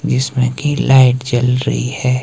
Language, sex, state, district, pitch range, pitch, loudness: Hindi, male, Himachal Pradesh, Shimla, 125-135 Hz, 130 Hz, -14 LUFS